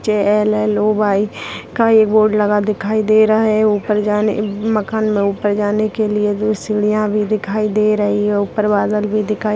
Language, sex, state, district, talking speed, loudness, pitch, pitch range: Hindi, female, Bihar, Begusarai, 175 wpm, -16 LUFS, 210 Hz, 210-215 Hz